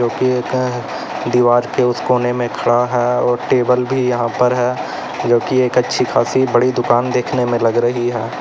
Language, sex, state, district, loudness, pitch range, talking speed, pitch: Hindi, male, Uttar Pradesh, Lalitpur, -16 LUFS, 120-125 Hz, 185 wpm, 125 Hz